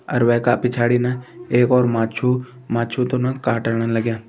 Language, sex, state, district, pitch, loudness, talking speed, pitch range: Hindi, male, Uttarakhand, Tehri Garhwal, 120 Hz, -19 LUFS, 140 wpm, 115-125 Hz